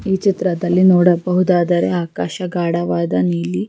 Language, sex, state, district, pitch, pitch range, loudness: Kannada, female, Karnataka, Raichur, 175 Hz, 160-180 Hz, -16 LUFS